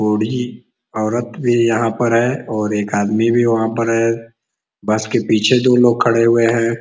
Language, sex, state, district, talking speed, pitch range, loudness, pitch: Hindi, male, Uttar Pradesh, Ghazipur, 185 wpm, 110-120 Hz, -16 LUFS, 115 Hz